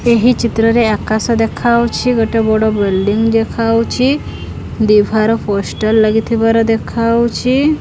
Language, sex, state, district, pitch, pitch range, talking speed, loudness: Odia, female, Odisha, Khordha, 225 Hz, 220-235 Hz, 100 wpm, -13 LUFS